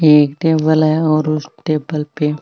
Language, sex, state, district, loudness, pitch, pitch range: Marwari, female, Rajasthan, Nagaur, -15 LUFS, 155 Hz, 150-155 Hz